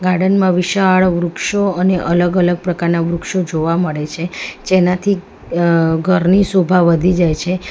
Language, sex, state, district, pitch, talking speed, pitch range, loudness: Gujarati, female, Gujarat, Valsad, 180 Hz, 150 wpm, 170-185 Hz, -15 LUFS